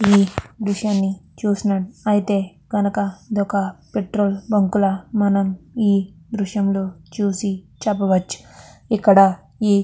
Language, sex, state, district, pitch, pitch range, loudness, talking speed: Telugu, female, Andhra Pradesh, Krishna, 200 Hz, 195-205 Hz, -20 LUFS, 100 wpm